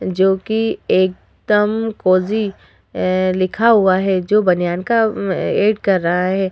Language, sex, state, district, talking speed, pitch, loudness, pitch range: Hindi, female, Uttar Pradesh, Hamirpur, 140 wpm, 195 Hz, -16 LUFS, 185-215 Hz